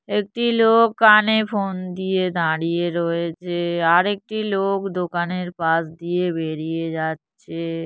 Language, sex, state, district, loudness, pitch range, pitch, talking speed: Bengali, female, West Bengal, Jhargram, -20 LUFS, 165-200 Hz, 175 Hz, 115 wpm